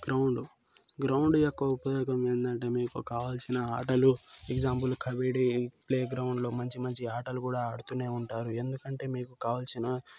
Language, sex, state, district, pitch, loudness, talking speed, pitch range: Telugu, male, Telangana, Nalgonda, 125 Hz, -31 LUFS, 120 wpm, 120-130 Hz